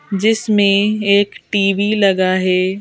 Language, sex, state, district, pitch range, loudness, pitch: Hindi, female, Madhya Pradesh, Bhopal, 195-210 Hz, -15 LUFS, 200 Hz